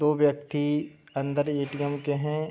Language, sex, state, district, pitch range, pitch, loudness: Hindi, male, Uttar Pradesh, Budaun, 145-150 Hz, 145 Hz, -28 LUFS